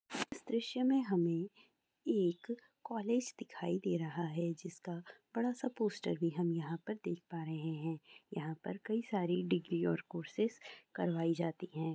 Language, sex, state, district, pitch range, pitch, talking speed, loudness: Maithili, female, Bihar, Sitamarhi, 165-215 Hz, 175 Hz, 165 wpm, -38 LUFS